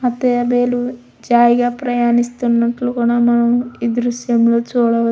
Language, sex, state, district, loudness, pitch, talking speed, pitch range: Telugu, female, Andhra Pradesh, Krishna, -16 LUFS, 240 Hz, 95 wpm, 235-245 Hz